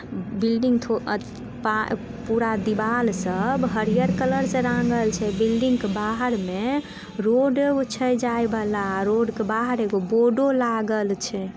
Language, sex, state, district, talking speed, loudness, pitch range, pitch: Maithili, female, Bihar, Samastipur, 140 wpm, -23 LUFS, 215-245 Hz, 225 Hz